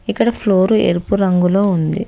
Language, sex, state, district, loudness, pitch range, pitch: Telugu, female, Telangana, Hyderabad, -15 LUFS, 180-200 Hz, 195 Hz